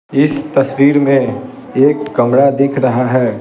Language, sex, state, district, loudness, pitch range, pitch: Hindi, male, Bihar, Patna, -13 LUFS, 130-140 Hz, 135 Hz